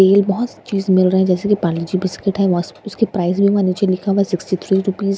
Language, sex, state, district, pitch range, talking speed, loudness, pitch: Hindi, female, Bihar, Katihar, 185-200 Hz, 290 wpm, -17 LUFS, 190 Hz